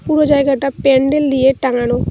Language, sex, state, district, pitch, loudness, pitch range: Bengali, female, West Bengal, Cooch Behar, 275 Hz, -14 LUFS, 265-285 Hz